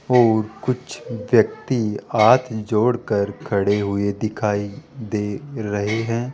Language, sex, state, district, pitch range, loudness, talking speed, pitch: Hindi, male, Rajasthan, Jaipur, 105-120 Hz, -21 LUFS, 105 wpm, 110 Hz